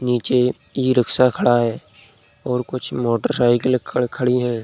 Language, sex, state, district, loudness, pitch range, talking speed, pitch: Hindi, male, Bihar, Begusarai, -19 LUFS, 120-125 Hz, 130 wpm, 125 Hz